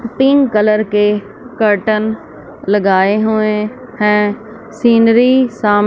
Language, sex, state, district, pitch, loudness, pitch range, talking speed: Hindi, female, Punjab, Fazilka, 215 Hz, -13 LUFS, 210-235 Hz, 90 wpm